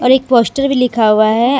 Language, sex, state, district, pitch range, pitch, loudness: Hindi, female, Jharkhand, Deoghar, 225-260 Hz, 250 Hz, -12 LUFS